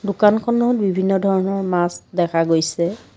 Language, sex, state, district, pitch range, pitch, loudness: Assamese, female, Assam, Kamrup Metropolitan, 175-205 Hz, 190 Hz, -19 LUFS